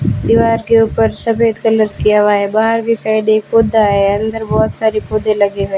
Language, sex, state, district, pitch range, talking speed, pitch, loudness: Hindi, female, Rajasthan, Jaisalmer, 200-225 Hz, 205 wpm, 215 Hz, -13 LUFS